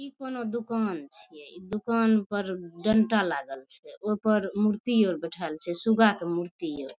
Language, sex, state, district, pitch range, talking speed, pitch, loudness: Maithili, female, Bihar, Madhepura, 170-220 Hz, 170 wpm, 205 Hz, -27 LUFS